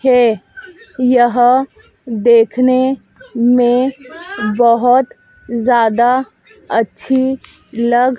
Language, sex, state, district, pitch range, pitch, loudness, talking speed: Hindi, female, Madhya Pradesh, Dhar, 235-265 Hz, 250 Hz, -13 LUFS, 60 wpm